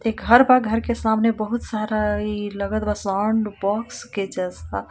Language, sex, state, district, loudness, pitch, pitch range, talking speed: Bhojpuri, female, Jharkhand, Palamu, -21 LUFS, 215 Hz, 200-225 Hz, 185 wpm